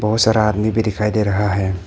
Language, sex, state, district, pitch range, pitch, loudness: Hindi, male, Arunachal Pradesh, Papum Pare, 105-110 Hz, 105 Hz, -17 LUFS